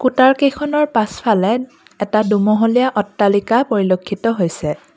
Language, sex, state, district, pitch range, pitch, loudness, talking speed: Assamese, female, Assam, Kamrup Metropolitan, 200-255 Hz, 220 Hz, -16 LUFS, 95 wpm